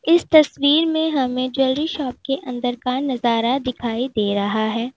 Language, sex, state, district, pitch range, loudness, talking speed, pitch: Hindi, female, Uttar Pradesh, Lalitpur, 240-280 Hz, -20 LUFS, 170 wpm, 255 Hz